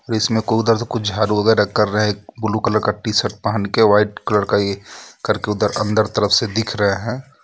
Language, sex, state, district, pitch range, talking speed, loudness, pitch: Hindi, male, Jharkhand, Ranchi, 105-110 Hz, 225 wpm, -18 LUFS, 105 Hz